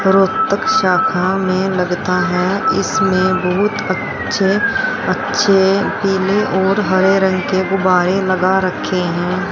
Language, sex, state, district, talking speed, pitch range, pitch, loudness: Hindi, female, Haryana, Rohtak, 100 wpm, 185-195 Hz, 190 Hz, -15 LUFS